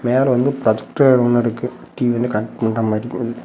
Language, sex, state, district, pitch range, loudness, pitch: Tamil, male, Tamil Nadu, Namakkal, 115-125 Hz, -18 LUFS, 120 Hz